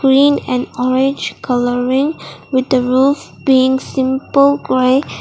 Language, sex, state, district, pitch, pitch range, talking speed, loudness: English, female, Mizoram, Aizawl, 265 Hz, 255-275 Hz, 115 wpm, -14 LUFS